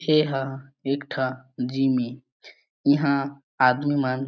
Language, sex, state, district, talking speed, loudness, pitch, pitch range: Chhattisgarhi, male, Chhattisgarh, Jashpur, 110 wpm, -24 LUFS, 135 Hz, 130-140 Hz